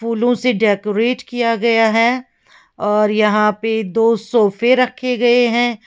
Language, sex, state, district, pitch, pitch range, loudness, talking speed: Hindi, female, Uttar Pradesh, Lalitpur, 230 Hz, 215-245 Hz, -16 LUFS, 145 wpm